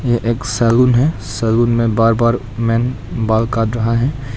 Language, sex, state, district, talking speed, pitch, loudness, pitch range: Hindi, male, Arunachal Pradesh, Papum Pare, 165 wpm, 115 Hz, -16 LUFS, 115-120 Hz